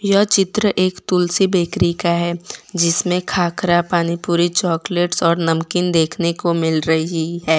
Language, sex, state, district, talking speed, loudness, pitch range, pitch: Hindi, female, Gujarat, Valsad, 150 wpm, -17 LUFS, 170-180 Hz, 175 Hz